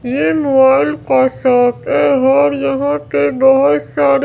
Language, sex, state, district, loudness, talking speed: Hindi, female, Bihar, Katihar, -13 LUFS, 140 wpm